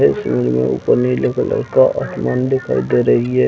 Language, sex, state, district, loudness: Hindi, male, Chhattisgarh, Bilaspur, -16 LUFS